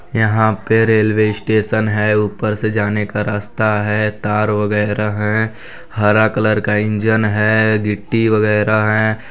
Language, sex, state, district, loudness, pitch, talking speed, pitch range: Hindi, male, Chhattisgarh, Balrampur, -16 LUFS, 105 Hz, 140 wpm, 105-110 Hz